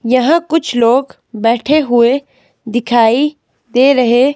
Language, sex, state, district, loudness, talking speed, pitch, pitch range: Hindi, female, Himachal Pradesh, Shimla, -13 LUFS, 110 wpm, 255 Hz, 240-280 Hz